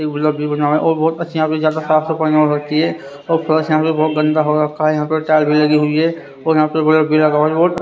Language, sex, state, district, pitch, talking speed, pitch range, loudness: Hindi, male, Haryana, Rohtak, 155 Hz, 200 wpm, 150-155 Hz, -15 LUFS